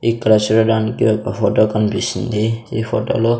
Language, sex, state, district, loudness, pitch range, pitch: Telugu, male, Andhra Pradesh, Sri Satya Sai, -17 LUFS, 110-115 Hz, 110 Hz